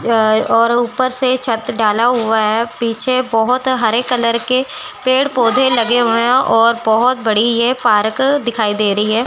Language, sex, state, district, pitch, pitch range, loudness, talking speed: Hindi, female, Chandigarh, Chandigarh, 235 Hz, 225-255 Hz, -14 LUFS, 170 wpm